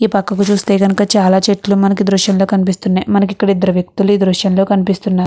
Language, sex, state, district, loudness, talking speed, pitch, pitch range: Telugu, female, Andhra Pradesh, Krishna, -13 LUFS, 205 wpm, 195 Hz, 190-205 Hz